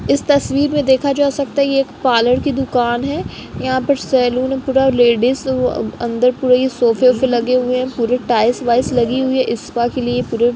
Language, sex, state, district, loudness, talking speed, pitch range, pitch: Hindi, female, Uttar Pradesh, Jalaun, -16 LUFS, 190 wpm, 245-270 Hz, 255 Hz